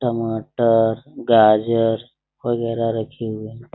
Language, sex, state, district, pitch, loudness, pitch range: Hindi, male, Bihar, Saran, 115 Hz, -19 LUFS, 110-120 Hz